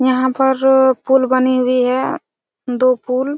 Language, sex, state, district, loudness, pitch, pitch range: Hindi, female, Chhattisgarh, Raigarh, -15 LUFS, 255 Hz, 255-265 Hz